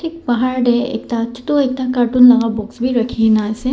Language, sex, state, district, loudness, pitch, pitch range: Nagamese, male, Nagaland, Dimapur, -15 LUFS, 245 Hz, 230-255 Hz